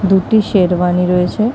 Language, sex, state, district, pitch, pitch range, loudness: Bengali, female, West Bengal, Kolkata, 185 Hz, 180-210 Hz, -13 LUFS